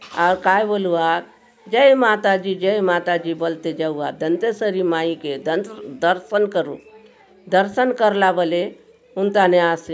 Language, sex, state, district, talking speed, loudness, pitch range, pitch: Halbi, male, Chhattisgarh, Bastar, 145 wpm, -19 LUFS, 170-210 Hz, 185 Hz